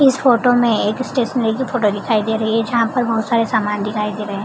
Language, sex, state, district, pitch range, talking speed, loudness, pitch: Hindi, female, Bihar, Begusarai, 215-245 Hz, 270 wpm, -17 LUFS, 225 Hz